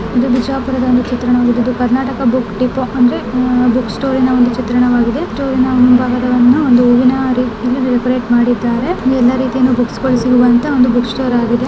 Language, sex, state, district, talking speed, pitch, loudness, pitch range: Kannada, female, Karnataka, Bijapur, 160 wpm, 250 Hz, -13 LUFS, 245-255 Hz